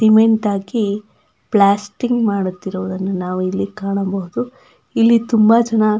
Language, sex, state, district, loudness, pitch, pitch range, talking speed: Kannada, female, Karnataka, Dakshina Kannada, -17 LUFS, 200 Hz, 190-220 Hz, 110 wpm